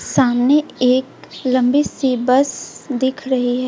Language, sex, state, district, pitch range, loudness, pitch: Hindi, female, West Bengal, Alipurduar, 250-270 Hz, -17 LUFS, 260 Hz